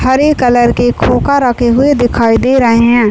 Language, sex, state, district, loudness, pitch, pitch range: Hindi, female, Uttar Pradesh, Deoria, -10 LUFS, 240 Hz, 230-260 Hz